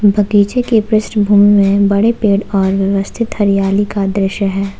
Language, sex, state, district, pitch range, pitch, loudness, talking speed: Hindi, female, Jharkhand, Ranchi, 195-210 Hz, 205 Hz, -13 LUFS, 165 wpm